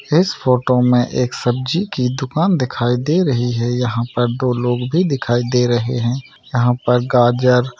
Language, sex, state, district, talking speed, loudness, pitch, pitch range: Hindi, male, Maharashtra, Nagpur, 185 wpm, -17 LUFS, 125 Hz, 120-135 Hz